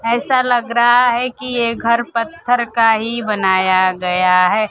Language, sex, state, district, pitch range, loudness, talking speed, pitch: Hindi, female, Bihar, Kaimur, 215-240 Hz, -15 LUFS, 165 wpm, 235 Hz